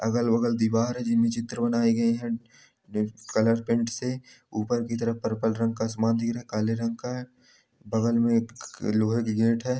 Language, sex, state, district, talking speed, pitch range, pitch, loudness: Hindi, male, Bihar, Samastipur, 190 wpm, 115-120 Hz, 115 Hz, -26 LUFS